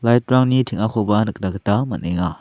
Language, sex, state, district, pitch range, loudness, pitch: Garo, male, Meghalaya, South Garo Hills, 100-120 Hz, -19 LUFS, 110 Hz